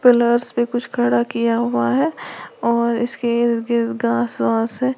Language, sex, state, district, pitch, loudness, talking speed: Hindi, female, Uttar Pradesh, Lalitpur, 235 Hz, -19 LUFS, 155 wpm